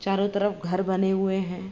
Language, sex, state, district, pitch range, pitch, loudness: Hindi, female, Bihar, Begusarai, 190-195 Hz, 190 Hz, -26 LUFS